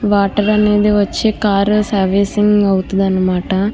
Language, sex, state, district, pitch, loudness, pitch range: Telugu, female, Andhra Pradesh, Krishna, 205 Hz, -14 LUFS, 195-210 Hz